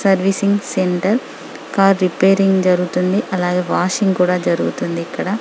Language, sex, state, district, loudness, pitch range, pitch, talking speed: Telugu, female, Telangana, Karimnagar, -16 LUFS, 180-195 Hz, 185 Hz, 110 wpm